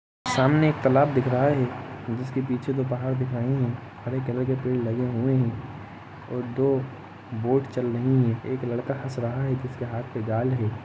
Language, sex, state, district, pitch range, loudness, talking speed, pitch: Hindi, male, Jharkhand, Jamtara, 120-130 Hz, -26 LUFS, 195 wpm, 125 Hz